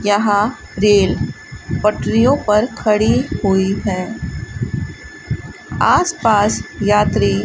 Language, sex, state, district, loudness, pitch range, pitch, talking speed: Hindi, female, Rajasthan, Bikaner, -16 LUFS, 195-215 Hz, 210 Hz, 90 wpm